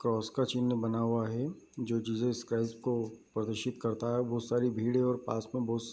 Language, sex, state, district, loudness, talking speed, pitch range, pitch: Hindi, male, Bihar, Bhagalpur, -33 LUFS, 220 wpm, 115-125 Hz, 115 Hz